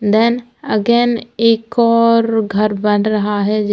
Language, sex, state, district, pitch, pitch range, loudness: Hindi, female, Uttar Pradesh, Lalitpur, 225 Hz, 210-235 Hz, -15 LUFS